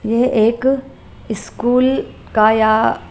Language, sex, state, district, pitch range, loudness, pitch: Hindi, female, Punjab, Pathankot, 220-250 Hz, -15 LUFS, 235 Hz